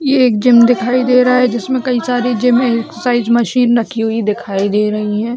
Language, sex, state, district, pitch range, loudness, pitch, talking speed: Hindi, female, Chhattisgarh, Balrampur, 225-250 Hz, -13 LUFS, 240 Hz, 210 wpm